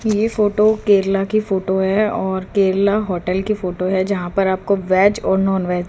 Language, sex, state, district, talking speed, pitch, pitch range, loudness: Hindi, female, Haryana, Jhajjar, 195 wpm, 195 Hz, 190-210 Hz, -17 LUFS